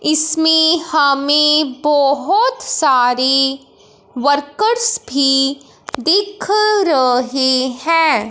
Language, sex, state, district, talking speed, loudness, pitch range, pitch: Hindi, male, Punjab, Fazilka, 65 wpm, -14 LUFS, 265-330 Hz, 290 Hz